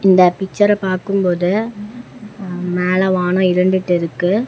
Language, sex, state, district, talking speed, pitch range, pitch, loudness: Tamil, female, Tamil Nadu, Namakkal, 105 wpm, 180-205 Hz, 185 Hz, -16 LUFS